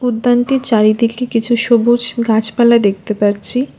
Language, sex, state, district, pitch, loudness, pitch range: Bengali, female, West Bengal, Alipurduar, 235 Hz, -13 LUFS, 220-245 Hz